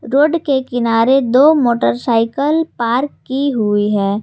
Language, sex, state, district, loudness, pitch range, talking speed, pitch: Hindi, female, Jharkhand, Ranchi, -15 LUFS, 225-280 Hz, 125 wpm, 245 Hz